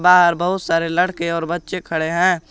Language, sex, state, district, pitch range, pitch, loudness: Hindi, male, Jharkhand, Garhwa, 165-180 Hz, 175 Hz, -18 LUFS